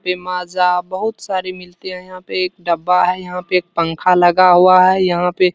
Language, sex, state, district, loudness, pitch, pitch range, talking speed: Hindi, male, Bihar, Supaul, -15 LUFS, 180 Hz, 180-185 Hz, 235 wpm